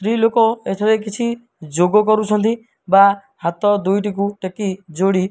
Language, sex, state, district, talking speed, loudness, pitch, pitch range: Odia, male, Odisha, Malkangiri, 160 wpm, -17 LUFS, 205 Hz, 195-220 Hz